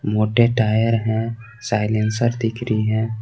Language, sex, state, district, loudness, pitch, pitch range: Hindi, male, Jharkhand, Garhwa, -20 LUFS, 110 Hz, 110-115 Hz